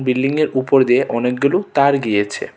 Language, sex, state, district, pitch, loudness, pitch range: Bengali, male, Tripura, West Tripura, 130 Hz, -16 LUFS, 125-140 Hz